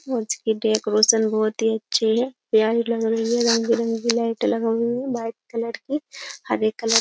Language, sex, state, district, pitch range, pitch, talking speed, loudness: Hindi, female, Uttar Pradesh, Jyotiba Phule Nagar, 220-235 Hz, 230 Hz, 195 wpm, -22 LUFS